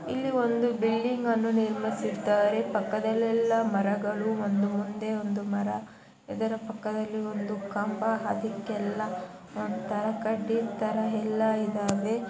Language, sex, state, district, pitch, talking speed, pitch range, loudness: Kannada, female, Karnataka, Mysore, 215 Hz, 105 wpm, 205-225 Hz, -29 LUFS